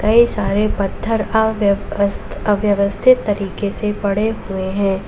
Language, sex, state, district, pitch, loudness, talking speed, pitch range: Hindi, female, Uttar Pradesh, Lalitpur, 205 Hz, -18 LUFS, 105 wpm, 200-220 Hz